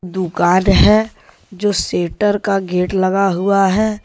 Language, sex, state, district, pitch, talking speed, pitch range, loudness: Hindi, male, Jharkhand, Deoghar, 195 Hz, 135 wpm, 185-205 Hz, -15 LUFS